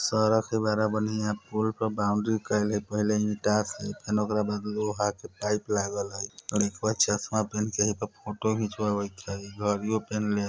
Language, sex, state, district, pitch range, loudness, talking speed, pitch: Bajjika, male, Bihar, Vaishali, 105-110 Hz, -28 LUFS, 190 wpm, 105 Hz